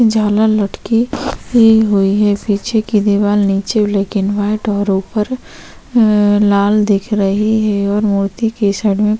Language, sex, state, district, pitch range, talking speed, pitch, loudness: Hindi, female, Chhattisgarh, Korba, 200-220 Hz, 145 wpm, 205 Hz, -14 LUFS